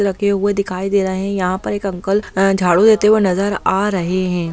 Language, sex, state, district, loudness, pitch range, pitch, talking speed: Hindi, female, Bihar, Sitamarhi, -16 LUFS, 185-200 Hz, 195 Hz, 250 wpm